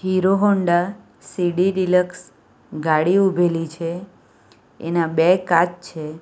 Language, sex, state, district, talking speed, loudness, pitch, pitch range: Gujarati, female, Gujarat, Valsad, 115 wpm, -19 LUFS, 175 Hz, 165-185 Hz